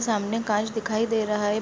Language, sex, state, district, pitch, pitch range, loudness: Hindi, female, Uttar Pradesh, Jalaun, 220 Hz, 210-225 Hz, -25 LUFS